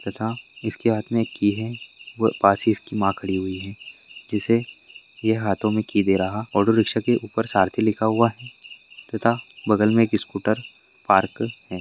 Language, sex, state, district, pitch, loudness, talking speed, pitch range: Hindi, male, Bihar, Purnia, 110 Hz, -22 LUFS, 190 wpm, 100-115 Hz